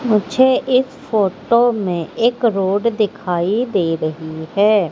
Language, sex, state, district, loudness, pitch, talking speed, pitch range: Hindi, female, Madhya Pradesh, Katni, -17 LUFS, 210 Hz, 120 wpm, 180-235 Hz